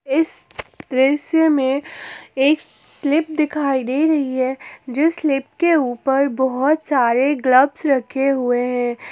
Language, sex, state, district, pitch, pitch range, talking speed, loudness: Hindi, female, Jharkhand, Garhwa, 275 Hz, 260-300 Hz, 125 wpm, -18 LUFS